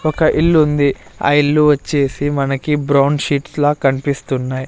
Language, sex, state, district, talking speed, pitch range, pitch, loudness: Telugu, male, Andhra Pradesh, Sri Satya Sai, 130 wpm, 140-150 Hz, 145 Hz, -15 LUFS